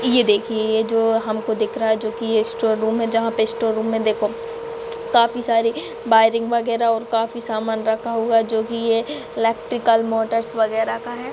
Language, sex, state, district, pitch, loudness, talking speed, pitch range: Hindi, female, Chhattisgarh, Bilaspur, 225 Hz, -20 LUFS, 190 wpm, 220-230 Hz